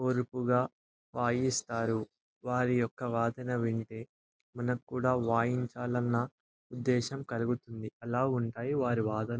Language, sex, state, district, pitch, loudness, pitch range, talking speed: Telugu, male, Andhra Pradesh, Anantapur, 120 Hz, -33 LUFS, 115-125 Hz, 90 wpm